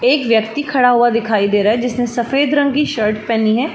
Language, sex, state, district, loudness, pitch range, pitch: Hindi, female, Uttar Pradesh, Varanasi, -15 LUFS, 220-270 Hz, 240 Hz